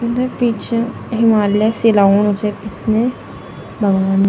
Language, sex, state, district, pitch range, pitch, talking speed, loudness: Garhwali, female, Uttarakhand, Tehri Garhwal, 205-230 Hz, 220 Hz, 100 wpm, -16 LUFS